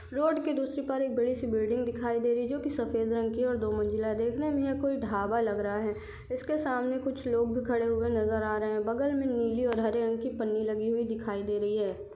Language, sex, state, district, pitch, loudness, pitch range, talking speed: Hindi, female, Chhattisgarh, Sarguja, 235 Hz, -30 LUFS, 220-255 Hz, 265 wpm